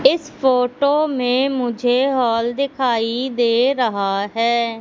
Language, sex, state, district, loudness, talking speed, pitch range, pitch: Hindi, female, Madhya Pradesh, Katni, -18 LUFS, 110 wpm, 235-270 Hz, 245 Hz